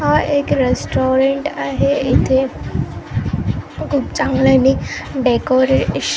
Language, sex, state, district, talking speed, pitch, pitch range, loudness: Marathi, female, Maharashtra, Gondia, 85 wpm, 265 Hz, 260-270 Hz, -17 LUFS